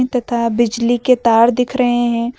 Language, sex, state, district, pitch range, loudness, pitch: Hindi, female, Uttar Pradesh, Lucknow, 235-250 Hz, -15 LUFS, 240 Hz